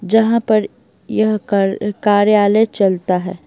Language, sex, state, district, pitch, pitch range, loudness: Hindi, female, Bihar, Patna, 205 Hz, 195-215 Hz, -15 LUFS